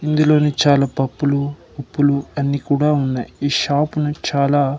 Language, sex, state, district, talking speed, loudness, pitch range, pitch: Telugu, male, Andhra Pradesh, Manyam, 140 wpm, -18 LUFS, 140-150 Hz, 145 Hz